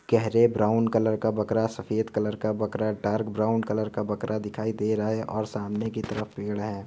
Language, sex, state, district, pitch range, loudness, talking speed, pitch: Hindi, male, Uttar Pradesh, Hamirpur, 105-110 Hz, -27 LUFS, 220 wpm, 110 Hz